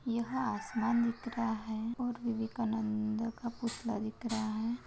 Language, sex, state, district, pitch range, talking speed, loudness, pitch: Hindi, female, Maharashtra, Nagpur, 220-235 Hz, 150 wpm, -36 LUFS, 230 Hz